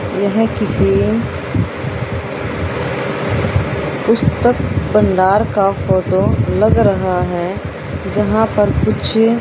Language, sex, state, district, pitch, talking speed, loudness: Hindi, female, Haryana, Rohtak, 130 Hz, 75 wpm, -16 LUFS